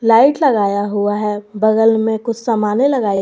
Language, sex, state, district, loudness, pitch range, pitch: Hindi, female, Jharkhand, Garhwa, -15 LUFS, 205-230 Hz, 220 Hz